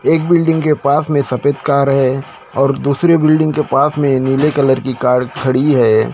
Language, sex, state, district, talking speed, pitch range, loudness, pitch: Hindi, male, Maharashtra, Gondia, 195 wpm, 135-150 Hz, -13 LUFS, 140 Hz